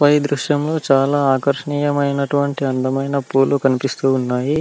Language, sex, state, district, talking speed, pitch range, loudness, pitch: Telugu, male, Andhra Pradesh, Anantapur, 105 wpm, 135-145 Hz, -18 LUFS, 140 Hz